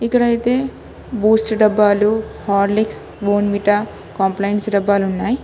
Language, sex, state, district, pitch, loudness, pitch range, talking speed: Telugu, female, Telangana, Hyderabad, 210 Hz, -17 LUFS, 200-220 Hz, 100 wpm